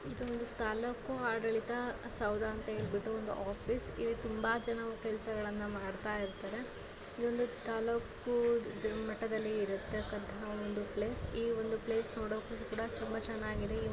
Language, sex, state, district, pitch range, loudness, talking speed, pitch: Kannada, female, Karnataka, Dakshina Kannada, 210-230 Hz, -38 LUFS, 125 wpm, 225 Hz